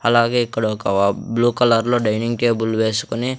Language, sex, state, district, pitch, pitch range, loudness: Telugu, male, Andhra Pradesh, Sri Satya Sai, 115 Hz, 110-120 Hz, -18 LUFS